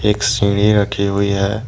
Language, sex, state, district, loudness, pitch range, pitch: Hindi, male, Jharkhand, Deoghar, -16 LUFS, 100-105 Hz, 100 Hz